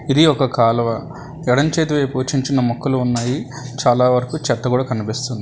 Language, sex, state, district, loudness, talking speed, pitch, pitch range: Telugu, male, Telangana, Hyderabad, -18 LUFS, 165 wpm, 130 Hz, 120-140 Hz